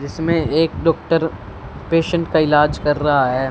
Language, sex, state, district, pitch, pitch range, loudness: Hindi, female, Punjab, Fazilka, 155 Hz, 145-165 Hz, -17 LUFS